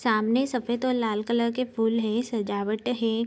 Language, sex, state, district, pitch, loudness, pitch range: Hindi, female, Bihar, Gopalganj, 230 Hz, -26 LUFS, 220-245 Hz